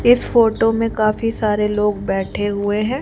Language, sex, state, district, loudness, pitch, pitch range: Hindi, female, Haryana, Charkhi Dadri, -18 LUFS, 215 Hz, 205-225 Hz